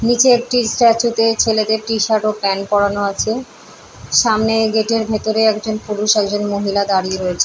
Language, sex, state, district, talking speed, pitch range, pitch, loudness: Bengali, female, West Bengal, Paschim Medinipur, 185 wpm, 205-225 Hz, 220 Hz, -16 LUFS